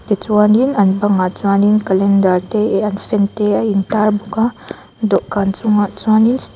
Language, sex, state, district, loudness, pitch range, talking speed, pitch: Mizo, female, Mizoram, Aizawl, -15 LUFS, 200-215 Hz, 175 wpm, 205 Hz